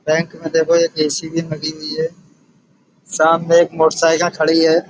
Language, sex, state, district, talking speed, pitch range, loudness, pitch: Hindi, male, Uttar Pradesh, Budaun, 170 wpm, 155-165 Hz, -16 LUFS, 160 Hz